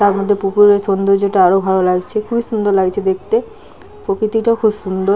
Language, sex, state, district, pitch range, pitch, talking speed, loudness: Bengali, female, West Bengal, Paschim Medinipur, 190-215 Hz, 200 Hz, 175 wpm, -15 LUFS